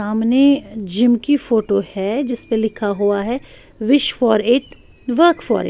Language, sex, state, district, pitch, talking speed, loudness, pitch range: Hindi, female, Bihar, West Champaran, 230 Hz, 160 wpm, -17 LUFS, 210-270 Hz